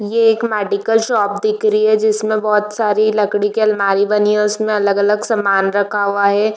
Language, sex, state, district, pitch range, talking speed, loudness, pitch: Hindi, female, Chhattisgarh, Bilaspur, 205-215 Hz, 200 wpm, -15 LUFS, 210 Hz